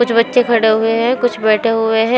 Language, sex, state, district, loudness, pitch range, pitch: Hindi, female, Uttar Pradesh, Shamli, -14 LUFS, 225-240 Hz, 230 Hz